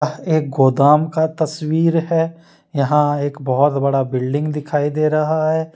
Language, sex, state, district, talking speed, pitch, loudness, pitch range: Hindi, male, Jharkhand, Deoghar, 155 wpm, 150 Hz, -17 LUFS, 145-160 Hz